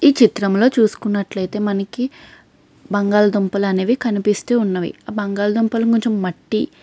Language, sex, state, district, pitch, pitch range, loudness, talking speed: Telugu, female, Andhra Pradesh, Krishna, 210 Hz, 200-230 Hz, -18 LUFS, 90 wpm